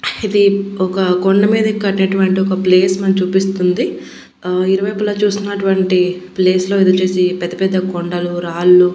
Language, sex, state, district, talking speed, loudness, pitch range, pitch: Telugu, female, Andhra Pradesh, Annamaya, 125 wpm, -15 LUFS, 180-195 Hz, 190 Hz